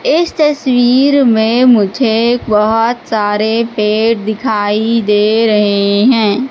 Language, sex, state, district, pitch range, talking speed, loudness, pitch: Hindi, female, Madhya Pradesh, Katni, 210-250 Hz, 100 wpm, -11 LUFS, 225 Hz